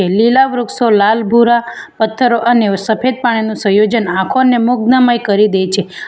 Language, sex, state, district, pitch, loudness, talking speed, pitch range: Gujarati, female, Gujarat, Valsad, 230 Hz, -12 LUFS, 140 wpm, 205-245 Hz